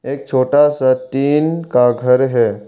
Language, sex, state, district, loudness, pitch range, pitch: Hindi, male, Arunachal Pradesh, Lower Dibang Valley, -14 LUFS, 125-145 Hz, 130 Hz